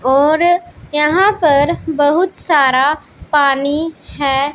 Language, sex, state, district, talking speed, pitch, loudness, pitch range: Hindi, female, Punjab, Pathankot, 90 wpm, 295 Hz, -14 LUFS, 280-325 Hz